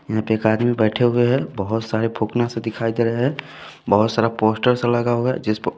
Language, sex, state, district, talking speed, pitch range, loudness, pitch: Hindi, male, Bihar, West Champaran, 260 wpm, 110-120 Hz, -20 LUFS, 115 Hz